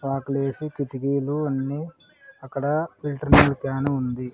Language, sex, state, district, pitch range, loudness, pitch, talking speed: Telugu, female, Andhra Pradesh, Sri Satya Sai, 135-150 Hz, -24 LUFS, 140 Hz, 125 wpm